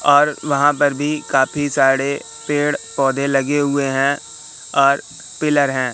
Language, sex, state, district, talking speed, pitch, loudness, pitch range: Hindi, male, Madhya Pradesh, Katni, 140 wpm, 145 Hz, -17 LUFS, 135-145 Hz